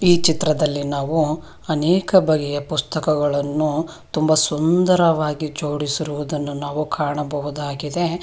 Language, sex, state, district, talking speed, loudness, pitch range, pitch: Kannada, female, Karnataka, Bangalore, 80 wpm, -20 LUFS, 145-160 Hz, 155 Hz